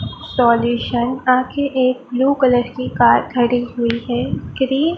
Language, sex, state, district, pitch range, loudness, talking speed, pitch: Hindi, female, Madhya Pradesh, Dhar, 240-260 Hz, -17 LUFS, 155 wpm, 250 Hz